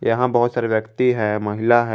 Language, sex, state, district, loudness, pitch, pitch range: Hindi, male, Jharkhand, Garhwa, -19 LUFS, 115 Hz, 110-120 Hz